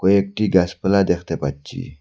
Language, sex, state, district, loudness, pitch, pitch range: Bengali, male, Assam, Hailakandi, -19 LUFS, 95 Hz, 85-100 Hz